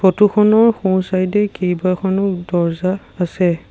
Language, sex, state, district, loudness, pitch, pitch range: Assamese, male, Assam, Sonitpur, -16 LUFS, 185 Hz, 180-200 Hz